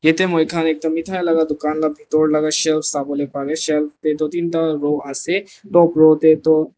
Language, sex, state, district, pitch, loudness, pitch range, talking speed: Nagamese, male, Nagaland, Dimapur, 155 Hz, -18 LUFS, 150-165 Hz, 205 wpm